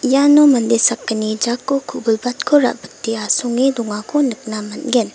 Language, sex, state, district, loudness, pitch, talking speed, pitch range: Garo, female, Meghalaya, West Garo Hills, -16 LUFS, 240 Hz, 115 wpm, 225-270 Hz